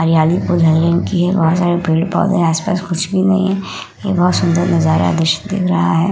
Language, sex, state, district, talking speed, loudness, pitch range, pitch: Hindi, female, Uttar Pradesh, Muzaffarnagar, 155 wpm, -15 LUFS, 160-185 Hz, 170 Hz